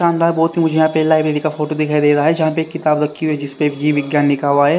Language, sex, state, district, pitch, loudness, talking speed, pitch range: Hindi, male, Haryana, Rohtak, 155 Hz, -16 LUFS, 325 wpm, 150-160 Hz